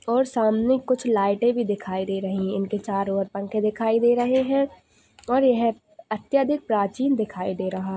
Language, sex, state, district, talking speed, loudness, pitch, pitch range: Hindi, female, Chhattisgarh, Jashpur, 180 wpm, -23 LUFS, 220 Hz, 195-255 Hz